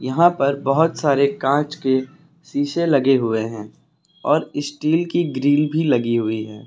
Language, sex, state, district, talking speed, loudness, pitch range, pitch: Hindi, male, Uttar Pradesh, Lucknow, 160 wpm, -19 LUFS, 130-160 Hz, 140 Hz